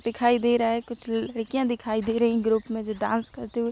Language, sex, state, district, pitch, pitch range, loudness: Hindi, female, Jharkhand, Sahebganj, 230 Hz, 225-240 Hz, -26 LUFS